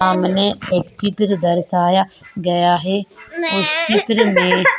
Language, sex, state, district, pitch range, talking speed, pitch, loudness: Hindi, female, Uttarakhand, Tehri Garhwal, 180-205 Hz, 125 wpm, 190 Hz, -16 LUFS